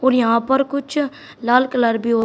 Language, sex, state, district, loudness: Hindi, male, Uttar Pradesh, Shamli, -18 LUFS